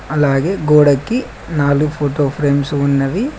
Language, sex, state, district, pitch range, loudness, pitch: Telugu, male, Telangana, Mahabubabad, 140-150 Hz, -15 LUFS, 145 Hz